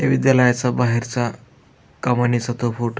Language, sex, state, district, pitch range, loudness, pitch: Marathi, male, Maharashtra, Aurangabad, 120-125 Hz, -19 LUFS, 120 Hz